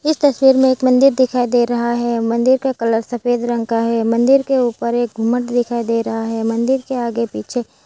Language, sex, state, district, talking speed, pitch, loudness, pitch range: Hindi, female, Gujarat, Valsad, 220 wpm, 240 Hz, -16 LUFS, 230-260 Hz